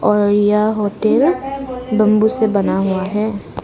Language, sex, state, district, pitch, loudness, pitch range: Hindi, female, Arunachal Pradesh, Lower Dibang Valley, 215 Hz, -16 LUFS, 205-225 Hz